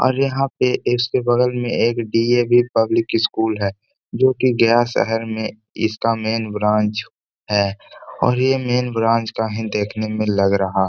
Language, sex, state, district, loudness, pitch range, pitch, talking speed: Hindi, male, Bihar, Gaya, -19 LUFS, 110-120 Hz, 115 Hz, 160 wpm